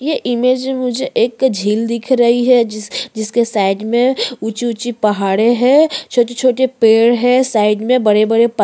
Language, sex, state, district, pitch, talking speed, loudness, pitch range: Hindi, female, Uttarakhand, Tehri Garhwal, 240 Hz, 165 wpm, -14 LUFS, 220-255 Hz